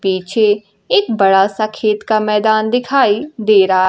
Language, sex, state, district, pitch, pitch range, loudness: Hindi, female, Bihar, Kaimur, 210 Hz, 195-220 Hz, -14 LUFS